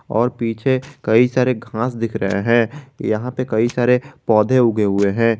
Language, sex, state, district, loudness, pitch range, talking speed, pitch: Hindi, male, Jharkhand, Garhwa, -18 LUFS, 110-125 Hz, 180 wpm, 115 Hz